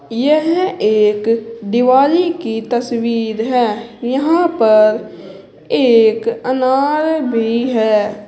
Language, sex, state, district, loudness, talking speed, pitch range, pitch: Hindi, female, Uttar Pradesh, Saharanpur, -14 LUFS, 85 wpm, 225-270 Hz, 235 Hz